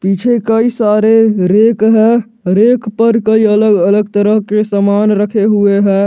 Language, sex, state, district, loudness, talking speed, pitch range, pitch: Hindi, male, Jharkhand, Garhwa, -11 LUFS, 160 wpm, 205-225 Hz, 215 Hz